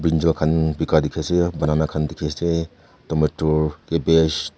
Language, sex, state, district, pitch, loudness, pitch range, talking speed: Nagamese, male, Nagaland, Kohima, 80 Hz, -21 LUFS, 75-80 Hz, 155 wpm